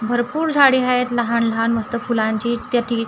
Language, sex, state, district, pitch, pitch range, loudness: Marathi, female, Maharashtra, Gondia, 240 Hz, 230-250 Hz, -18 LUFS